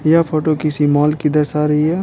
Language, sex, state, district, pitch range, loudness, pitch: Hindi, male, Bihar, Patna, 150-155 Hz, -16 LUFS, 150 Hz